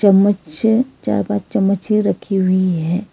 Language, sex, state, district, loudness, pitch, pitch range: Hindi, female, Karnataka, Bangalore, -17 LUFS, 195 Hz, 175-205 Hz